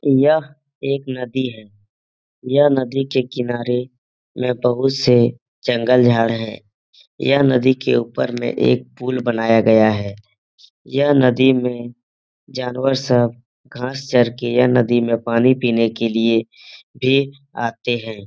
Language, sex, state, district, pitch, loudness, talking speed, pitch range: Hindi, male, Bihar, Jahanabad, 125 Hz, -18 LUFS, 140 wpm, 115-130 Hz